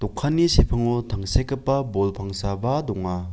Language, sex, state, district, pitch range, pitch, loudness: Garo, male, Meghalaya, West Garo Hills, 100-135 Hz, 115 Hz, -23 LUFS